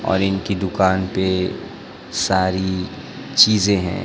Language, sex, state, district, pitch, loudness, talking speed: Hindi, male, Chhattisgarh, Raipur, 95 Hz, -19 LUFS, 105 wpm